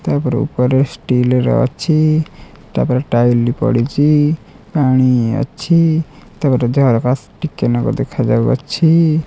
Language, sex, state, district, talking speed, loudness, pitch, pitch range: Odia, male, Odisha, Khordha, 125 wpm, -15 LUFS, 135 Hz, 125-155 Hz